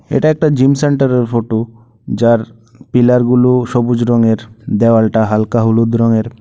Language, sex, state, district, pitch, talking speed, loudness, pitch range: Bengali, male, Tripura, West Tripura, 115 Hz, 140 wpm, -13 LUFS, 115-125 Hz